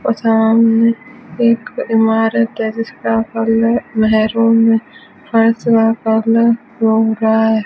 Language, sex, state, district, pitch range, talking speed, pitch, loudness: Hindi, female, Rajasthan, Bikaner, 220-230 Hz, 100 wpm, 225 Hz, -14 LUFS